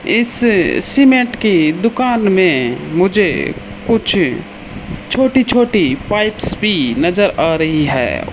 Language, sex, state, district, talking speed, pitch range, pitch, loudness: Hindi, male, Rajasthan, Bikaner, 110 wpm, 185-245 Hz, 215 Hz, -14 LUFS